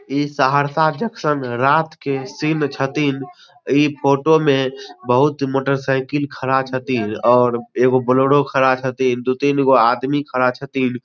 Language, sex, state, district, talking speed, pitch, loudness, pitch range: Maithili, male, Bihar, Supaul, 140 wpm, 135 Hz, -18 LUFS, 130-145 Hz